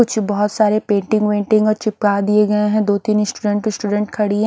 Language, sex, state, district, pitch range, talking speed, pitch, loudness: Hindi, female, Haryana, Charkhi Dadri, 205-215 Hz, 215 wpm, 210 Hz, -17 LUFS